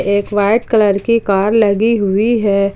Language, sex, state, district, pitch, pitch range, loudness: Hindi, female, Jharkhand, Palamu, 205 Hz, 200-225 Hz, -13 LUFS